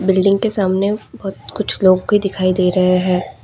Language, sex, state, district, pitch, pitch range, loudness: Hindi, female, Assam, Kamrup Metropolitan, 190 Hz, 185-200 Hz, -16 LUFS